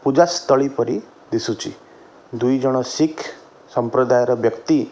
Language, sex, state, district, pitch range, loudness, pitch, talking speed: Odia, male, Odisha, Khordha, 125-155 Hz, -19 LUFS, 130 Hz, 110 wpm